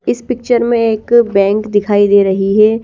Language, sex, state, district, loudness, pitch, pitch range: Hindi, female, Haryana, Rohtak, -12 LUFS, 215 Hz, 205-235 Hz